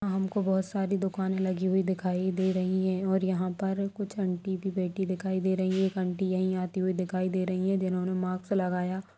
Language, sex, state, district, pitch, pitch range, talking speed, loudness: Kumaoni, female, Uttarakhand, Tehri Garhwal, 190 Hz, 185-190 Hz, 230 wpm, -29 LUFS